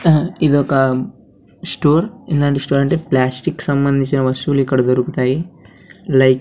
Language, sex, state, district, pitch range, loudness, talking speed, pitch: Telugu, male, Andhra Pradesh, Sri Satya Sai, 130-160 Hz, -16 LUFS, 105 wpm, 140 Hz